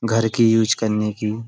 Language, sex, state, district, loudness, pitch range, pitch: Hindi, male, Uttar Pradesh, Budaun, -19 LUFS, 105-115 Hz, 110 Hz